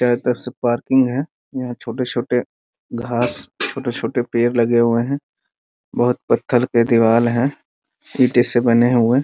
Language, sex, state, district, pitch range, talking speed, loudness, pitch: Hindi, male, Bihar, Muzaffarpur, 120-125 Hz, 150 wpm, -18 LUFS, 120 Hz